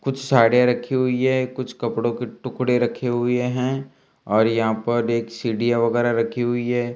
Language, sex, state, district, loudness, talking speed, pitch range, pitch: Hindi, male, Bihar, Kaimur, -21 LUFS, 180 wpm, 115-125 Hz, 120 Hz